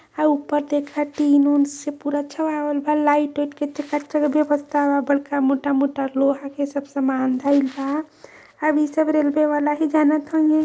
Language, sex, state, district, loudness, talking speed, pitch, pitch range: Hindi, male, Uttar Pradesh, Varanasi, -21 LUFS, 180 wpm, 290 Hz, 280-300 Hz